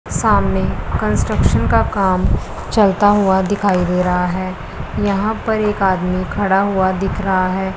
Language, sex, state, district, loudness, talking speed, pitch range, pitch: Hindi, male, Punjab, Pathankot, -16 LUFS, 145 wpm, 180-200 Hz, 190 Hz